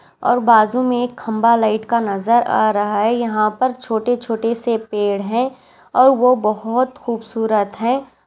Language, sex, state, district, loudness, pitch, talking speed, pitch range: Hindi, female, Maharashtra, Aurangabad, -17 LUFS, 230 Hz, 165 wpm, 215-245 Hz